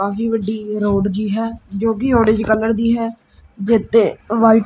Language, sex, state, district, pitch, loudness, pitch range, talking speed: Punjabi, male, Punjab, Kapurthala, 225 Hz, -17 LUFS, 210-230 Hz, 180 wpm